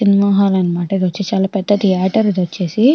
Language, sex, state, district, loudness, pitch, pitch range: Telugu, female, Andhra Pradesh, Chittoor, -15 LUFS, 195 Hz, 185-200 Hz